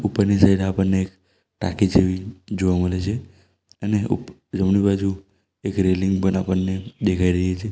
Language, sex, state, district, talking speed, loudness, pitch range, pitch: Gujarati, male, Gujarat, Valsad, 155 wpm, -21 LUFS, 95-100 Hz, 95 Hz